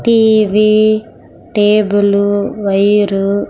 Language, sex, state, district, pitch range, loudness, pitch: Telugu, female, Andhra Pradesh, Sri Satya Sai, 200-215 Hz, -12 LUFS, 210 Hz